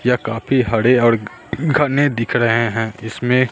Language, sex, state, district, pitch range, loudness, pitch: Hindi, male, Bihar, Katihar, 115-130 Hz, -17 LUFS, 120 Hz